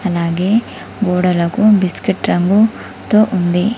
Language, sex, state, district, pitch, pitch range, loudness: Telugu, female, Telangana, Komaram Bheem, 190 Hz, 175-215 Hz, -14 LUFS